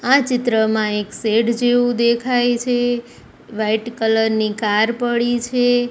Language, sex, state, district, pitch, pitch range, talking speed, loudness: Gujarati, female, Gujarat, Gandhinagar, 235 Hz, 220-245 Hz, 130 wpm, -18 LUFS